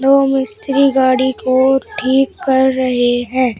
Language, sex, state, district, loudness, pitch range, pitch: Hindi, female, Uttar Pradesh, Shamli, -14 LUFS, 255-270 Hz, 260 Hz